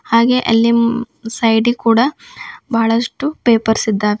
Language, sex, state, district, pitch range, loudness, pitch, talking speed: Kannada, female, Karnataka, Bidar, 225-250 Hz, -15 LUFS, 235 Hz, 115 wpm